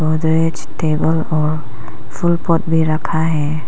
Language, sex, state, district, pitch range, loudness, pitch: Hindi, female, Arunachal Pradesh, Papum Pare, 150-160 Hz, -17 LUFS, 155 Hz